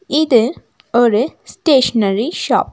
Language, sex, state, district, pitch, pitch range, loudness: Tamil, female, Tamil Nadu, Nilgiris, 240 Hz, 225-310 Hz, -15 LUFS